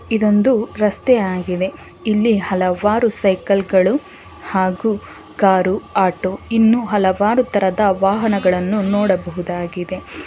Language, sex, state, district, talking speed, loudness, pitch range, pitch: Kannada, female, Karnataka, Bangalore, 90 wpm, -17 LUFS, 185-220 Hz, 200 Hz